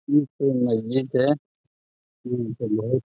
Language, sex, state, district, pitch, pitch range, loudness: Hindi, male, Uttar Pradesh, Deoria, 130 Hz, 115-140 Hz, -24 LUFS